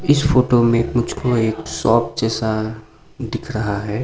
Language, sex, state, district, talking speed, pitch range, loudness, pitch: Hindi, male, Sikkim, Gangtok, 150 wpm, 110-120 Hz, -18 LUFS, 115 Hz